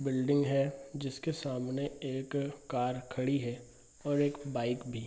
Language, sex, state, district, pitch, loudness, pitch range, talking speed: Hindi, male, Bihar, Bhagalpur, 135 Hz, -34 LUFS, 125-145 Hz, 140 wpm